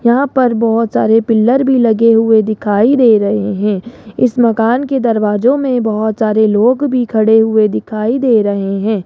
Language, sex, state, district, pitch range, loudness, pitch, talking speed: Hindi, male, Rajasthan, Jaipur, 215-245 Hz, -12 LUFS, 225 Hz, 180 wpm